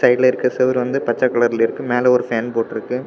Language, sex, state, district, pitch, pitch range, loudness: Tamil, male, Tamil Nadu, Kanyakumari, 125 Hz, 120-125 Hz, -18 LUFS